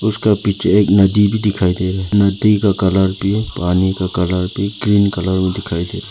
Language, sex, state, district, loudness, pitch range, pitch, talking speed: Hindi, male, Arunachal Pradesh, Lower Dibang Valley, -15 LUFS, 95-105 Hz, 100 Hz, 215 wpm